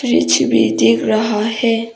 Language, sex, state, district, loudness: Hindi, female, Arunachal Pradesh, Papum Pare, -14 LUFS